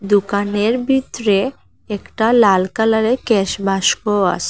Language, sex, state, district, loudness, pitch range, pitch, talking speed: Bengali, female, Assam, Hailakandi, -16 LUFS, 200-230 Hz, 210 Hz, 105 wpm